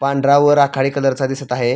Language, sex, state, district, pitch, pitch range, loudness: Marathi, male, Maharashtra, Pune, 135 Hz, 135-140 Hz, -15 LUFS